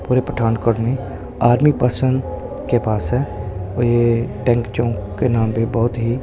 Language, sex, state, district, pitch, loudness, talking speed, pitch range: Hindi, male, Punjab, Pathankot, 120 Hz, -19 LUFS, 165 wpm, 110-125 Hz